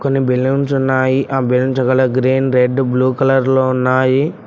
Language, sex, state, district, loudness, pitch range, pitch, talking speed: Telugu, male, Telangana, Mahabubabad, -14 LUFS, 130-135 Hz, 130 Hz, 150 wpm